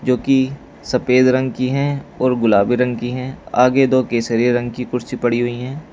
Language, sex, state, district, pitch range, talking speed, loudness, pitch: Hindi, male, Uttar Pradesh, Shamli, 120-130 Hz, 200 wpm, -17 LUFS, 125 Hz